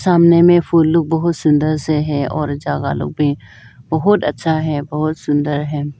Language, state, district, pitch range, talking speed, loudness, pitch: Hindi, Arunachal Pradesh, Lower Dibang Valley, 145-165 Hz, 180 wpm, -16 LUFS, 150 Hz